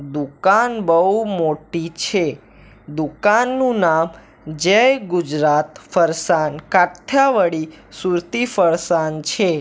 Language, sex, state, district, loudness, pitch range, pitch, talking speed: Gujarati, male, Gujarat, Valsad, -18 LUFS, 155-200 Hz, 170 Hz, 80 wpm